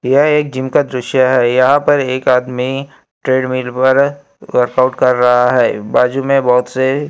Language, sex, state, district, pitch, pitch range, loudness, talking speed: Hindi, male, Maharashtra, Gondia, 130 Hz, 125-135 Hz, -13 LUFS, 170 wpm